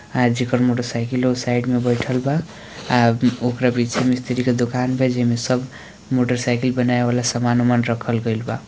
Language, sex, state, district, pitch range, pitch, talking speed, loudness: Hindi, male, Bihar, Gopalganj, 120-125 Hz, 125 Hz, 160 wpm, -19 LUFS